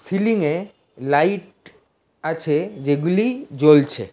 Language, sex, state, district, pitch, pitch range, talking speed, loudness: Bengali, male, West Bengal, Dakshin Dinajpur, 160 Hz, 145-195 Hz, 85 wpm, -19 LUFS